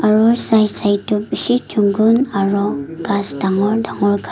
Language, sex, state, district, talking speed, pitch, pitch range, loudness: Nagamese, female, Nagaland, Dimapur, 150 wpm, 205 Hz, 200-220 Hz, -15 LUFS